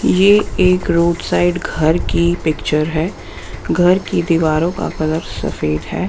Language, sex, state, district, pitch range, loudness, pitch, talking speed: Hindi, female, Bihar, West Champaran, 155-175 Hz, -16 LUFS, 165 Hz, 150 wpm